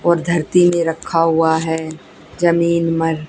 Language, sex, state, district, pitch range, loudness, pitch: Hindi, female, Haryana, Jhajjar, 160-170 Hz, -16 LUFS, 165 Hz